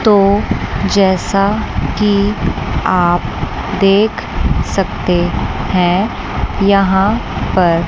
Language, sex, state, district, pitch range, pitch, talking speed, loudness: Hindi, female, Chandigarh, Chandigarh, 180-200 Hz, 195 Hz, 70 wpm, -14 LUFS